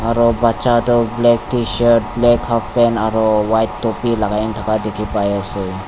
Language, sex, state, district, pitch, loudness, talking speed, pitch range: Nagamese, male, Nagaland, Dimapur, 110 Hz, -16 LUFS, 165 wpm, 105-120 Hz